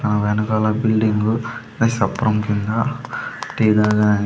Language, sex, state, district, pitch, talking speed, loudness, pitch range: Telugu, male, Andhra Pradesh, Sri Satya Sai, 110 Hz, 110 wpm, -19 LUFS, 105-115 Hz